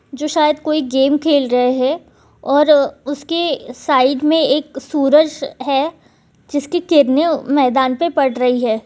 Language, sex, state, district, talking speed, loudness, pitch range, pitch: Hindi, female, Bihar, Supaul, 140 wpm, -15 LUFS, 265-305 Hz, 285 Hz